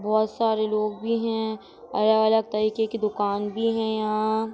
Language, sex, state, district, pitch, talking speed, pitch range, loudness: Hindi, female, Jharkhand, Sahebganj, 220 Hz, 160 wpm, 215-220 Hz, -24 LUFS